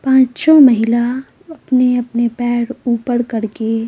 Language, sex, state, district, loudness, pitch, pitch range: Hindi, female, Bihar, Patna, -14 LUFS, 245 Hz, 235-260 Hz